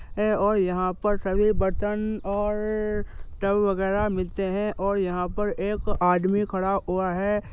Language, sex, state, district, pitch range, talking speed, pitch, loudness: Hindi, male, Uttar Pradesh, Jyotiba Phule Nagar, 190-210 Hz, 150 wpm, 200 Hz, -25 LUFS